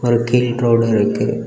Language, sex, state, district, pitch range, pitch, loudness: Tamil, male, Tamil Nadu, Kanyakumari, 115-120 Hz, 120 Hz, -16 LUFS